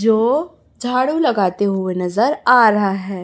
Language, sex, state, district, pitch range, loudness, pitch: Hindi, female, Chhattisgarh, Raipur, 190-245 Hz, -16 LUFS, 220 Hz